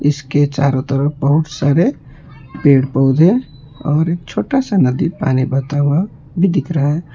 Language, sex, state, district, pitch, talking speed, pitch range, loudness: Hindi, male, West Bengal, Alipurduar, 145 Hz, 160 wpm, 140-165 Hz, -15 LUFS